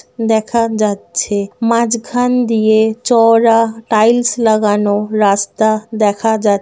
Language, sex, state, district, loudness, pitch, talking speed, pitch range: Bengali, female, West Bengal, North 24 Parganas, -13 LUFS, 220 Hz, 90 wpm, 210-230 Hz